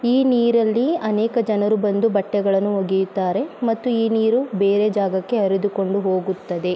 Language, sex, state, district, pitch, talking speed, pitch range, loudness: Kannada, female, Karnataka, Mysore, 205 Hz, 125 wpm, 195-230 Hz, -20 LUFS